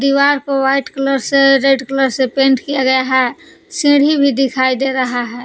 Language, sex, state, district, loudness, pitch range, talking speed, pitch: Hindi, female, Jharkhand, Palamu, -14 LUFS, 260-280 Hz, 200 wpm, 270 Hz